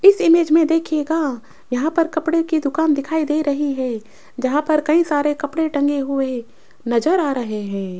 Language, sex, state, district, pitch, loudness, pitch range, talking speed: Hindi, female, Rajasthan, Jaipur, 295 Hz, -19 LUFS, 260-320 Hz, 180 wpm